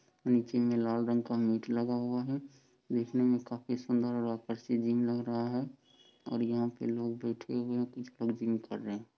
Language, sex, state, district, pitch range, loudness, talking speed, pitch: Hindi, male, Bihar, Sitamarhi, 115-125 Hz, -33 LUFS, 210 wpm, 120 Hz